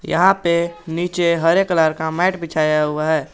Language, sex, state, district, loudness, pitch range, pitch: Hindi, male, Jharkhand, Garhwa, -18 LUFS, 160-175 Hz, 170 Hz